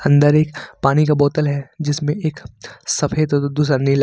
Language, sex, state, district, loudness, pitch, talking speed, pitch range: Hindi, male, Jharkhand, Ranchi, -18 LUFS, 145 Hz, 165 wpm, 140-150 Hz